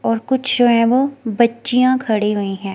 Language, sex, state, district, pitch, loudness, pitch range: Hindi, female, Himachal Pradesh, Shimla, 235 Hz, -16 LUFS, 220-255 Hz